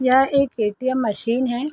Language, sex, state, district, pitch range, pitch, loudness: Hindi, female, Bihar, Sitamarhi, 235-265 Hz, 255 Hz, -20 LUFS